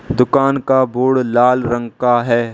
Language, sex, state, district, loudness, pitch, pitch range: Hindi, male, Arunachal Pradesh, Lower Dibang Valley, -15 LUFS, 125 Hz, 120-130 Hz